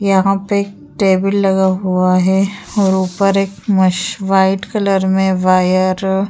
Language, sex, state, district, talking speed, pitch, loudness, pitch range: Hindi, female, Uttar Pradesh, Jyotiba Phule Nagar, 150 wpm, 190 Hz, -14 LUFS, 185-195 Hz